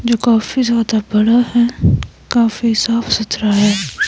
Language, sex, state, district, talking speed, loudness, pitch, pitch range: Hindi, female, Himachal Pradesh, Shimla, 130 wpm, -15 LUFS, 230 Hz, 215-235 Hz